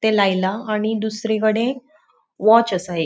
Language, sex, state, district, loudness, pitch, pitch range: Konkani, female, Goa, North and South Goa, -19 LUFS, 215 Hz, 195-220 Hz